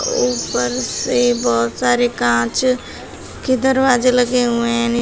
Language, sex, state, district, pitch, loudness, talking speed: Hindi, female, Uttar Pradesh, Shamli, 235 Hz, -16 LUFS, 120 wpm